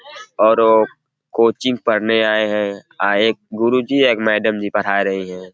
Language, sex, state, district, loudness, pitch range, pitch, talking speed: Hindi, male, Uttar Pradesh, Deoria, -17 LUFS, 105-115 Hz, 110 Hz, 165 wpm